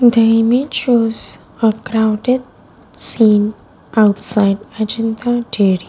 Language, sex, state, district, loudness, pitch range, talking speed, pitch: English, female, Gujarat, Valsad, -15 LUFS, 210-240 Hz, 90 wpm, 225 Hz